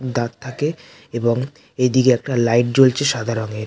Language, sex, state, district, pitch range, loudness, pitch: Bengali, male, West Bengal, North 24 Parganas, 115-130 Hz, -18 LUFS, 125 Hz